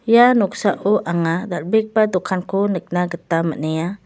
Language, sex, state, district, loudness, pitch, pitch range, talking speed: Garo, female, Meghalaya, West Garo Hills, -19 LUFS, 185 Hz, 170-210 Hz, 120 wpm